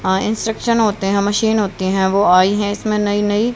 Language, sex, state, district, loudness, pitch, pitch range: Hindi, female, Haryana, Rohtak, -16 LUFS, 205 Hz, 195-220 Hz